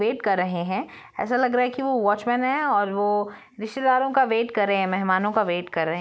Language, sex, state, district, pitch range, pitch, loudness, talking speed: Hindi, female, Jharkhand, Jamtara, 195-255 Hz, 210 Hz, -23 LUFS, 240 wpm